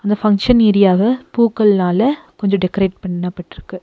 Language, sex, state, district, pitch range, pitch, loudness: Tamil, female, Tamil Nadu, Nilgiris, 185-220 Hz, 200 Hz, -15 LUFS